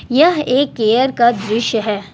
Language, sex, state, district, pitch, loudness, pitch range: Hindi, female, Jharkhand, Deoghar, 235 Hz, -15 LUFS, 220-265 Hz